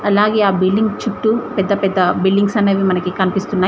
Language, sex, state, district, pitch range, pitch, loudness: Telugu, female, Telangana, Mahabubabad, 185-210 Hz, 195 Hz, -16 LUFS